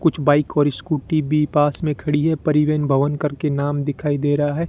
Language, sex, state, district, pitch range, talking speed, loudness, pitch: Hindi, male, Rajasthan, Bikaner, 145-150 Hz, 215 wpm, -19 LUFS, 150 Hz